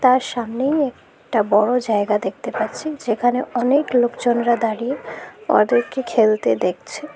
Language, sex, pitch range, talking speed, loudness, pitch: Bengali, female, 220-260 Hz, 115 wpm, -19 LUFS, 240 Hz